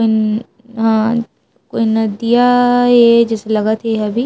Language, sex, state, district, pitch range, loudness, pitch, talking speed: Chhattisgarhi, female, Chhattisgarh, Raigarh, 220-235 Hz, -13 LUFS, 225 Hz, 125 wpm